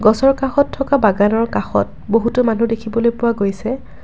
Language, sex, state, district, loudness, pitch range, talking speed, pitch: Assamese, female, Assam, Kamrup Metropolitan, -17 LUFS, 220-265 Hz, 150 wpm, 230 Hz